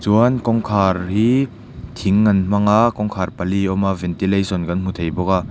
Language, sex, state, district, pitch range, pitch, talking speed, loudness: Mizo, male, Mizoram, Aizawl, 95-110 Hz, 100 Hz, 195 wpm, -18 LUFS